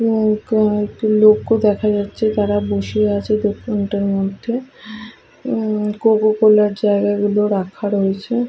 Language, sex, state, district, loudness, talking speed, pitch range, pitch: Bengali, female, Bihar, Katihar, -17 LUFS, 105 wpm, 205-215 Hz, 210 Hz